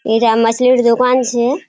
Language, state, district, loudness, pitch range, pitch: Surjapuri, Bihar, Kishanganj, -13 LUFS, 230-255 Hz, 240 Hz